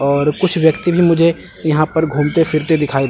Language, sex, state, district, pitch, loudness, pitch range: Hindi, male, Chandigarh, Chandigarh, 160 Hz, -15 LUFS, 150-165 Hz